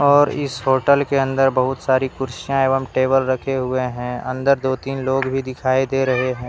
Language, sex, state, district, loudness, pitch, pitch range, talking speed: Hindi, male, Jharkhand, Deoghar, -19 LUFS, 135 Hz, 130-135 Hz, 205 wpm